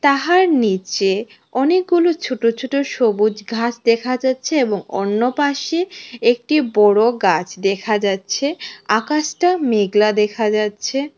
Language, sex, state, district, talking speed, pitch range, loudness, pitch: Bengali, female, Tripura, West Tripura, 115 wpm, 210-290 Hz, -17 LUFS, 235 Hz